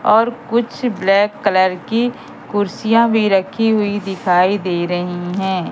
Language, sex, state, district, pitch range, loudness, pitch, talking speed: Hindi, female, Madhya Pradesh, Katni, 185-225 Hz, -17 LUFS, 205 Hz, 135 wpm